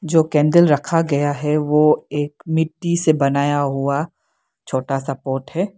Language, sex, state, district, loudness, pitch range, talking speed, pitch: Hindi, female, Arunachal Pradesh, Lower Dibang Valley, -18 LUFS, 140-160 Hz, 155 wpm, 150 Hz